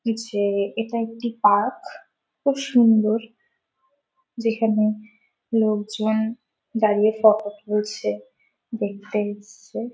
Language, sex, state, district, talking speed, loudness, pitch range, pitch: Bengali, female, West Bengal, Malda, 85 wpm, -22 LUFS, 210-235 Hz, 220 Hz